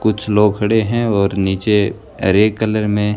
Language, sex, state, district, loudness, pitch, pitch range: Hindi, male, Rajasthan, Bikaner, -16 LUFS, 105 Hz, 105-110 Hz